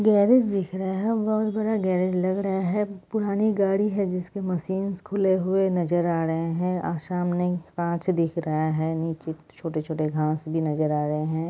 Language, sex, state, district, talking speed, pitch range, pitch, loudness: Hindi, female, West Bengal, Jalpaiguri, 185 wpm, 160-195 Hz, 180 Hz, -25 LUFS